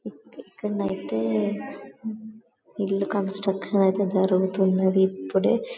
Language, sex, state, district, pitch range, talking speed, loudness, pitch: Telugu, male, Telangana, Karimnagar, 190-210 Hz, 60 wpm, -24 LUFS, 195 Hz